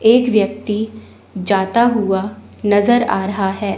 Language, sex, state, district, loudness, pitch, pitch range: Hindi, male, Chandigarh, Chandigarh, -16 LUFS, 210 Hz, 195-225 Hz